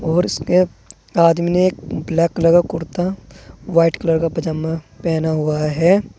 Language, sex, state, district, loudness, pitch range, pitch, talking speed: Hindi, male, Uttar Pradesh, Saharanpur, -18 LUFS, 160-175 Hz, 165 Hz, 155 wpm